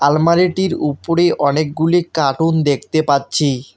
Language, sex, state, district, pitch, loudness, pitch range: Bengali, male, West Bengal, Alipurduar, 155 Hz, -16 LUFS, 140-170 Hz